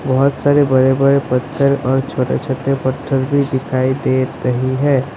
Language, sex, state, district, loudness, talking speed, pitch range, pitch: Hindi, male, Assam, Sonitpur, -16 LUFS, 160 wpm, 130-140 Hz, 135 Hz